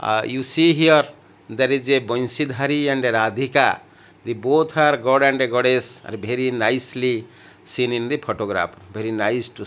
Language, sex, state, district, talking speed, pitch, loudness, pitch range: English, male, Odisha, Malkangiri, 175 wpm, 125 Hz, -20 LUFS, 115-140 Hz